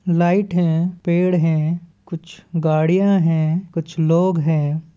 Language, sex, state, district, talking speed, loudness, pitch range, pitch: Chhattisgarhi, male, Chhattisgarh, Balrampur, 120 wpm, -18 LUFS, 160-180 Hz, 170 Hz